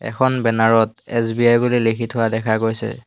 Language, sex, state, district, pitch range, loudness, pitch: Assamese, male, Assam, Hailakandi, 115-120 Hz, -18 LUFS, 115 Hz